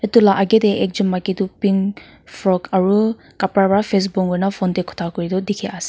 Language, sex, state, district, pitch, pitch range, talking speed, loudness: Nagamese, female, Nagaland, Kohima, 195 Hz, 185-205 Hz, 225 wpm, -18 LUFS